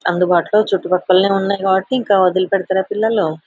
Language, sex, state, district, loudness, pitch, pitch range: Telugu, female, Telangana, Nalgonda, -16 LUFS, 190 Hz, 185-200 Hz